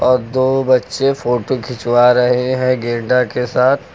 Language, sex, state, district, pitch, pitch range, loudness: Hindi, male, Uttar Pradesh, Lucknow, 125 Hz, 120-130 Hz, -15 LUFS